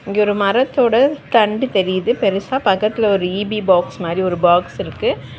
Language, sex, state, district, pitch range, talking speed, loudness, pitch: Tamil, female, Tamil Nadu, Chennai, 185-230 Hz, 155 wpm, -16 LUFS, 200 Hz